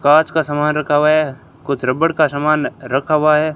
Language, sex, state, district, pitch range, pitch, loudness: Hindi, male, Rajasthan, Bikaner, 140-155 Hz, 150 Hz, -16 LUFS